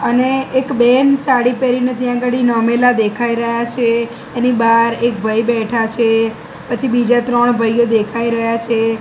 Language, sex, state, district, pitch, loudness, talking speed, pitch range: Gujarati, female, Gujarat, Gandhinagar, 235 Hz, -15 LUFS, 160 wpm, 230-245 Hz